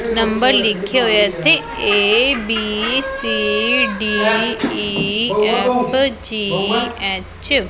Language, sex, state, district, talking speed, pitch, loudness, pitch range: Punjabi, female, Punjab, Pathankot, 100 wpm, 220 Hz, -15 LUFS, 205-245 Hz